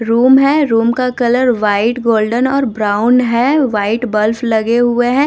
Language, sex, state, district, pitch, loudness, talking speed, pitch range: Hindi, female, Bihar, Patna, 240 Hz, -13 LUFS, 170 wpm, 225-255 Hz